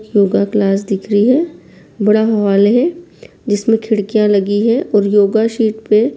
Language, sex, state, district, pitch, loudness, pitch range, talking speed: Hindi, female, Bihar, Begusarai, 215 Hz, -14 LUFS, 205-225 Hz, 165 wpm